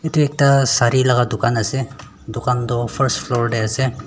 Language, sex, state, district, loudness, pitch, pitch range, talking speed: Nagamese, male, Nagaland, Dimapur, -18 LUFS, 125 Hz, 120-135 Hz, 175 wpm